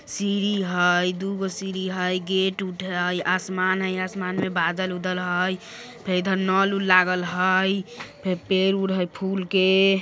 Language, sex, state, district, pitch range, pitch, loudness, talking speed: Bajjika, female, Bihar, Vaishali, 180-195 Hz, 185 Hz, -23 LUFS, 155 wpm